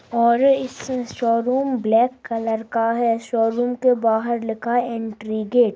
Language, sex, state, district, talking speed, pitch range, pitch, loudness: Hindi, female, Bihar, Saharsa, 155 wpm, 225-245 Hz, 235 Hz, -21 LUFS